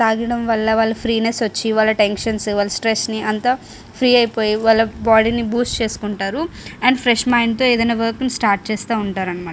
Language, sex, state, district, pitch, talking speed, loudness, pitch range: Telugu, female, Andhra Pradesh, Srikakulam, 225 Hz, 175 wpm, -17 LUFS, 215-235 Hz